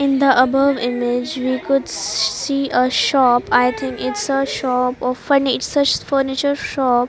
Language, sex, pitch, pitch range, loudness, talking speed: English, female, 260 Hz, 250-275 Hz, -17 LUFS, 160 wpm